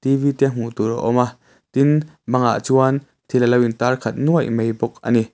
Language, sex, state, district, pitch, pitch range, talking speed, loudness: Mizo, male, Mizoram, Aizawl, 125 Hz, 115-135 Hz, 215 wpm, -19 LUFS